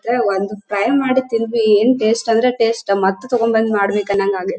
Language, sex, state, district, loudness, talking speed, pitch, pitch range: Kannada, female, Karnataka, Dharwad, -16 LUFS, 195 wpm, 225 Hz, 200-235 Hz